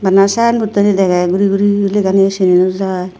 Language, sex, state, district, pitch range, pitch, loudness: Chakma, female, Tripura, Unakoti, 185-205 Hz, 195 Hz, -12 LUFS